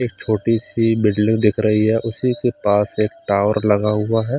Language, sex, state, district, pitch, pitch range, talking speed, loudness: Hindi, male, Odisha, Khordha, 110 Hz, 105-115 Hz, 190 wpm, -18 LUFS